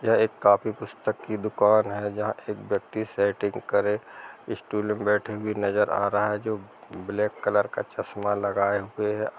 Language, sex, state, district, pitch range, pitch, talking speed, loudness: Hindi, male, Bihar, East Champaran, 100-105 Hz, 105 Hz, 180 wpm, -26 LUFS